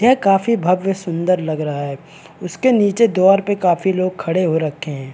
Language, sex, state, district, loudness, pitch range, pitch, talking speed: Hindi, male, Chhattisgarh, Rajnandgaon, -17 LUFS, 160-195 Hz, 185 Hz, 210 wpm